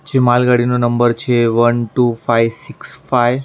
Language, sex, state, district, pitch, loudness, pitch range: Gujarati, male, Maharashtra, Mumbai Suburban, 120 Hz, -14 LUFS, 120-125 Hz